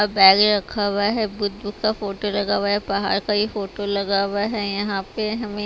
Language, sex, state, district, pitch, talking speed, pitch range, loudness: Hindi, female, Haryana, Rohtak, 205 Hz, 225 wpm, 200-210 Hz, -21 LUFS